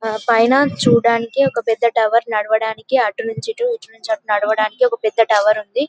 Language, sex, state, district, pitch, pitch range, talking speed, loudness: Telugu, female, Telangana, Karimnagar, 230 Hz, 220-250 Hz, 185 wpm, -17 LUFS